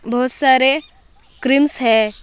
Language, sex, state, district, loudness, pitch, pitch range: Hindi, female, Maharashtra, Solapur, -14 LUFS, 260 Hz, 230-275 Hz